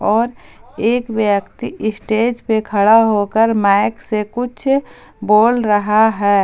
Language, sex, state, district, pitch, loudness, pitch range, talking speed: Hindi, female, Jharkhand, Palamu, 220 Hz, -15 LUFS, 210-230 Hz, 120 wpm